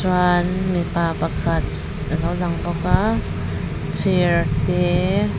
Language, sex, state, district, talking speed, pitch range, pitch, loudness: Mizo, female, Mizoram, Aizawl, 100 wpm, 170-180 Hz, 175 Hz, -20 LUFS